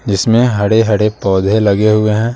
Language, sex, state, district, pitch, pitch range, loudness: Hindi, male, Bihar, Patna, 110 Hz, 105-115 Hz, -12 LUFS